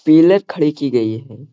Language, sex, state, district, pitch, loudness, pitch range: Hindi, male, Bihar, Gaya, 145 Hz, -15 LUFS, 120-155 Hz